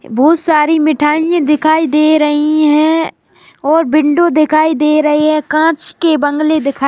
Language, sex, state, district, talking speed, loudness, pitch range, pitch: Hindi, male, Madhya Pradesh, Bhopal, 150 wpm, -11 LUFS, 300-315 Hz, 310 Hz